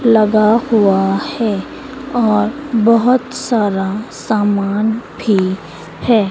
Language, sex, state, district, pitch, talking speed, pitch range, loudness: Hindi, female, Madhya Pradesh, Dhar, 220 Hz, 85 wpm, 205-235 Hz, -15 LUFS